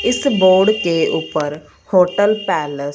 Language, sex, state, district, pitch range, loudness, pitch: Hindi, female, Punjab, Fazilka, 150-200 Hz, -16 LUFS, 180 Hz